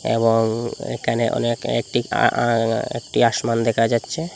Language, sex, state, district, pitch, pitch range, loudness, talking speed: Bengali, male, Assam, Hailakandi, 115 Hz, 115-120 Hz, -20 LUFS, 125 wpm